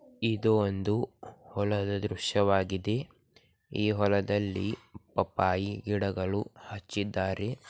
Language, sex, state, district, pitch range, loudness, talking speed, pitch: Kannada, male, Karnataka, Belgaum, 100-110 Hz, -30 LUFS, 70 wpm, 105 Hz